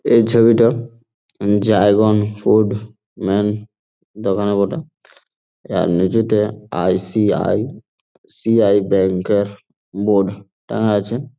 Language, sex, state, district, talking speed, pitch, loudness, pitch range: Bengali, male, West Bengal, Jalpaiguri, 85 wpm, 105 Hz, -17 LUFS, 100-110 Hz